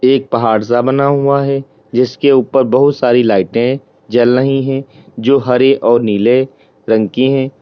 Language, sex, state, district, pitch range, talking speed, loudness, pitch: Hindi, male, Uttar Pradesh, Lalitpur, 120-135 Hz, 165 wpm, -12 LUFS, 130 Hz